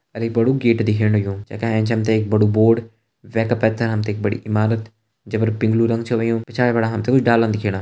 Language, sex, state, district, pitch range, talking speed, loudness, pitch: Hindi, male, Uttarakhand, Uttarkashi, 110-115 Hz, 270 wpm, -19 LUFS, 115 Hz